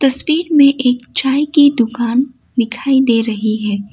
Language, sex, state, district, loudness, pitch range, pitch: Hindi, female, Assam, Kamrup Metropolitan, -14 LUFS, 235-280 Hz, 255 Hz